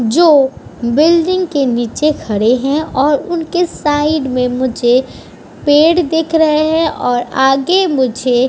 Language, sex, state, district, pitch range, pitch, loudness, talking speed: Hindi, female, Uttar Pradesh, Budaun, 250-320 Hz, 290 Hz, -13 LUFS, 135 wpm